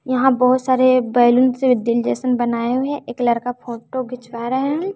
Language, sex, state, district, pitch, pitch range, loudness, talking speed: Hindi, female, Bihar, West Champaran, 250 Hz, 240-255 Hz, -18 LUFS, 195 wpm